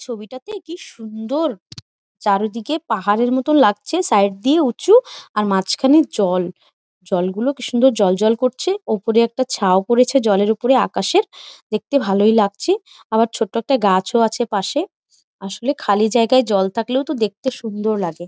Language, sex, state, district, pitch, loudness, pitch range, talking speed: Bengali, female, West Bengal, Malda, 230 Hz, -17 LUFS, 205-265 Hz, 145 wpm